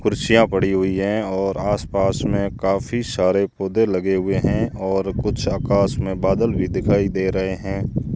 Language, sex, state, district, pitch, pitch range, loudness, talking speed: Hindi, male, Rajasthan, Jaisalmer, 95 Hz, 95-105 Hz, -20 LUFS, 170 wpm